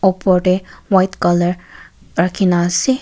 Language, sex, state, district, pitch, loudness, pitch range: Nagamese, female, Nagaland, Kohima, 185 Hz, -16 LUFS, 175-190 Hz